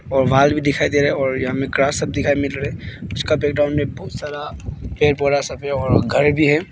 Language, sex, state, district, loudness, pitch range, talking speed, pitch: Hindi, male, Arunachal Pradesh, Papum Pare, -18 LUFS, 135-145 Hz, 225 wpm, 140 Hz